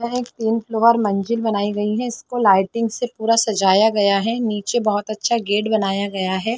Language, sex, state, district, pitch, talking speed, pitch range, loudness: Hindi, female, Chhattisgarh, Sarguja, 220 Hz, 200 wpm, 205-230 Hz, -19 LUFS